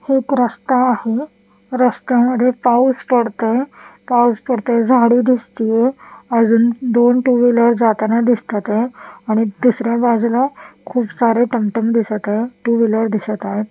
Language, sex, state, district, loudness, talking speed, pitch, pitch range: Marathi, female, Maharashtra, Washim, -16 LUFS, 125 wpm, 235 Hz, 225-250 Hz